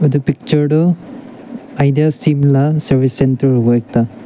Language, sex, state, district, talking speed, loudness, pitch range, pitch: Nagamese, male, Nagaland, Dimapur, 125 wpm, -14 LUFS, 135-155 Hz, 145 Hz